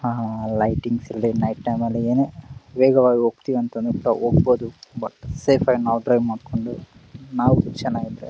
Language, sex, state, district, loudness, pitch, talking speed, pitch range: Kannada, male, Karnataka, Bellary, -21 LUFS, 120 Hz, 145 wpm, 115-130 Hz